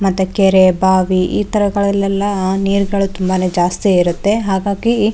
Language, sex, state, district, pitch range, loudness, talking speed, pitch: Kannada, female, Karnataka, Raichur, 185-200 Hz, -14 LUFS, 115 wpm, 195 Hz